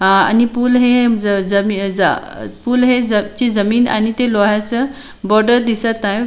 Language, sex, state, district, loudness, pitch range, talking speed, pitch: Marathi, female, Maharashtra, Chandrapur, -14 LUFS, 205-245 Hz, 170 wpm, 225 Hz